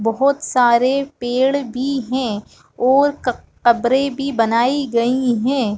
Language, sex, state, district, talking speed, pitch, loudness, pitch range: Hindi, female, Chhattisgarh, Bastar, 135 wpm, 255 Hz, -17 LUFS, 235-275 Hz